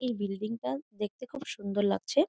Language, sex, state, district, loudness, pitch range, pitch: Bengali, female, West Bengal, Jhargram, -33 LUFS, 200-255 Hz, 210 Hz